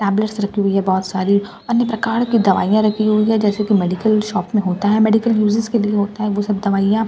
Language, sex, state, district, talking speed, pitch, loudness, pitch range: Hindi, female, Bihar, Katihar, 260 wpm, 210 Hz, -17 LUFS, 200-220 Hz